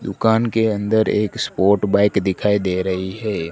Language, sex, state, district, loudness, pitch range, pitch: Hindi, male, Gujarat, Gandhinagar, -18 LUFS, 95-110 Hz, 105 Hz